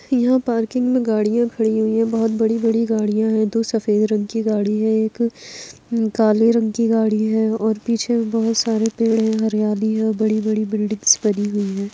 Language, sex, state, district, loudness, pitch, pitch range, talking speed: Hindi, female, Uttar Pradesh, Etah, -19 LUFS, 220 Hz, 215-230 Hz, 195 wpm